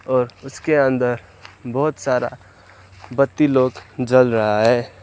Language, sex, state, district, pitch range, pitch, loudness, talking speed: Hindi, male, West Bengal, Alipurduar, 105-130 Hz, 125 Hz, -19 LUFS, 120 wpm